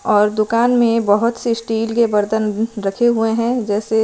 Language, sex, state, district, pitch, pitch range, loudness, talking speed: Hindi, female, Himachal Pradesh, Shimla, 225 Hz, 210-235 Hz, -17 LUFS, 180 wpm